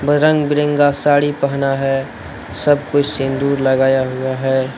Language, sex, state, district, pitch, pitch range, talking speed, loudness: Hindi, male, Jharkhand, Deoghar, 140 Hz, 130-145 Hz, 140 wpm, -16 LUFS